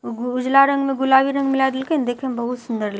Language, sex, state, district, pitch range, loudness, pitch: Maithili, female, Bihar, Katihar, 245-270 Hz, -19 LUFS, 265 Hz